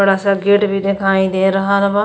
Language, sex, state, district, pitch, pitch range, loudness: Bhojpuri, female, Uttar Pradesh, Gorakhpur, 195 Hz, 195-200 Hz, -15 LUFS